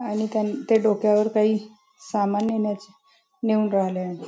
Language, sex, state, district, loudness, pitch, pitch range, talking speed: Marathi, female, Maharashtra, Nagpur, -23 LUFS, 215 Hz, 205-220 Hz, 140 wpm